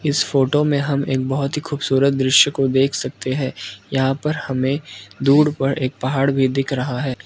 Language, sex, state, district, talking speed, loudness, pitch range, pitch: Hindi, male, Arunachal Pradesh, Lower Dibang Valley, 200 wpm, -19 LUFS, 130-140 Hz, 135 Hz